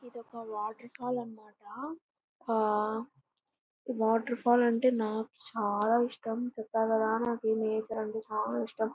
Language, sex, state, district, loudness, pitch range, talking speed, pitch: Telugu, female, Andhra Pradesh, Anantapur, -32 LUFS, 220-240 Hz, 125 wpm, 225 Hz